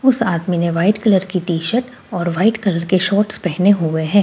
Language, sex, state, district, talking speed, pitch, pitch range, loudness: Hindi, female, Delhi, New Delhi, 225 wpm, 190 Hz, 170-210 Hz, -17 LUFS